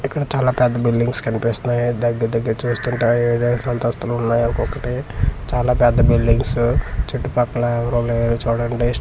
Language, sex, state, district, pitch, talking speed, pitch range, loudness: Telugu, male, Andhra Pradesh, Manyam, 120 Hz, 155 wpm, 115-125 Hz, -19 LUFS